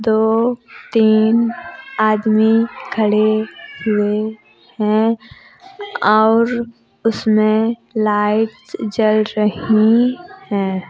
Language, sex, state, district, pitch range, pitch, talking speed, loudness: Hindi, female, Uttar Pradesh, Jalaun, 215-235 Hz, 220 Hz, 65 wpm, -16 LUFS